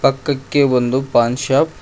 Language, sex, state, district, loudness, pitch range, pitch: Kannada, male, Karnataka, Koppal, -16 LUFS, 125-140 Hz, 135 Hz